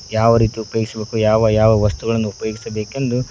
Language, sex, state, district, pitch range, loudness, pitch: Kannada, male, Karnataka, Koppal, 110-115 Hz, -17 LUFS, 110 Hz